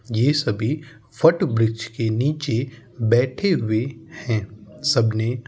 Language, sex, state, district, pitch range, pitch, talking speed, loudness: Bhojpuri, male, Uttar Pradesh, Gorakhpur, 110-145 Hz, 120 Hz, 120 wpm, -21 LUFS